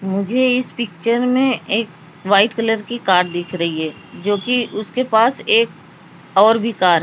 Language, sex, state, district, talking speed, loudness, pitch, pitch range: Hindi, female, Uttar Pradesh, Lalitpur, 180 wpm, -17 LUFS, 210 Hz, 180-235 Hz